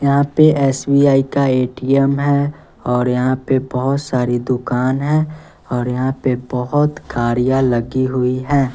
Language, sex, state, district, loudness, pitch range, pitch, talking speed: Hindi, male, Bihar, West Champaran, -17 LUFS, 125-140 Hz, 130 Hz, 145 wpm